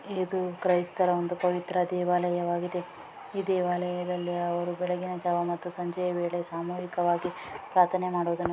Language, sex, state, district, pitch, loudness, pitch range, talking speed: Kannada, female, Karnataka, Raichur, 180 Hz, -29 LUFS, 175-180 Hz, 110 wpm